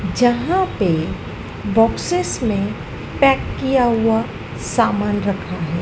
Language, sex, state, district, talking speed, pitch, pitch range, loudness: Hindi, female, Madhya Pradesh, Dhar, 105 wpm, 225 Hz, 200-250 Hz, -19 LUFS